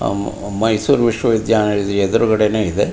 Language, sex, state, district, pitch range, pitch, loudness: Kannada, male, Karnataka, Mysore, 100-110 Hz, 105 Hz, -16 LUFS